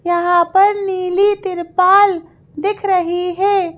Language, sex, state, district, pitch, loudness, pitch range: Hindi, female, Madhya Pradesh, Bhopal, 370 Hz, -15 LUFS, 350-395 Hz